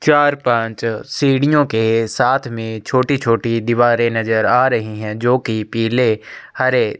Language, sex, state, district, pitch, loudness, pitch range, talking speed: Hindi, male, Chhattisgarh, Sukma, 115 Hz, -16 LUFS, 110-130 Hz, 145 wpm